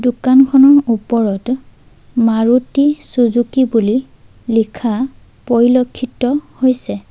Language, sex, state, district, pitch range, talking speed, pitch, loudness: Assamese, female, Assam, Sonitpur, 230-260 Hz, 70 wpm, 245 Hz, -14 LUFS